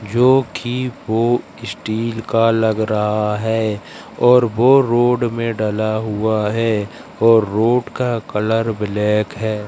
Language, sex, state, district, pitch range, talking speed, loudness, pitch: Hindi, female, Madhya Pradesh, Katni, 105-120 Hz, 130 wpm, -17 LUFS, 110 Hz